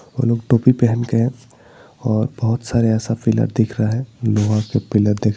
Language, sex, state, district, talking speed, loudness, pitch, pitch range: Hindi, male, Bihar, Vaishali, 180 wpm, -18 LUFS, 115 Hz, 110-120 Hz